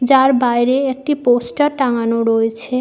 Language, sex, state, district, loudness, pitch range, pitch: Bengali, female, West Bengal, Malda, -16 LUFS, 240-270 Hz, 250 Hz